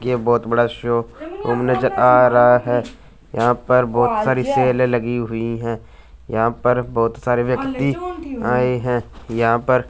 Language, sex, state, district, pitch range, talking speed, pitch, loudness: Hindi, male, Punjab, Fazilka, 115-125 Hz, 165 wpm, 120 Hz, -18 LUFS